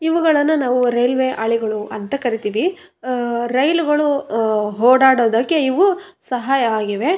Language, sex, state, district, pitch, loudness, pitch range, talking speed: Kannada, female, Karnataka, Raichur, 255 Hz, -17 LUFS, 230-300 Hz, 100 wpm